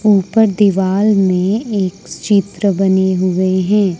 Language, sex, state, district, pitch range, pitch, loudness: Hindi, female, Jharkhand, Ranchi, 185-205 Hz, 195 Hz, -14 LUFS